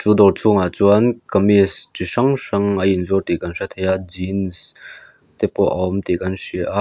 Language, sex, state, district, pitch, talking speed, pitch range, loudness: Mizo, male, Mizoram, Aizawl, 95 Hz, 230 wpm, 90-100 Hz, -18 LUFS